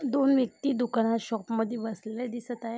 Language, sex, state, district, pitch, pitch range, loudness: Marathi, female, Maharashtra, Aurangabad, 235 Hz, 225-250 Hz, -29 LUFS